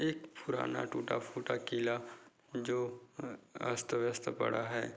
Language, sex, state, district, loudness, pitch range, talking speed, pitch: Hindi, male, Bihar, Jahanabad, -38 LUFS, 120-125 Hz, 120 wpm, 120 Hz